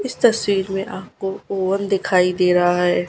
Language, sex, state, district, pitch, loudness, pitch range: Hindi, female, Gujarat, Gandhinagar, 190 Hz, -19 LUFS, 180-195 Hz